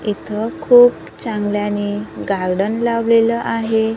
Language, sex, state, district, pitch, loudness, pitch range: Marathi, female, Maharashtra, Gondia, 220 Hz, -17 LUFS, 205-230 Hz